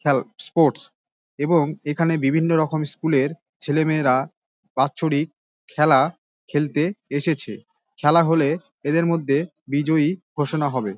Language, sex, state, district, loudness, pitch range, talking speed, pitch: Bengali, male, West Bengal, Dakshin Dinajpur, -21 LUFS, 145-165 Hz, 105 wpm, 155 Hz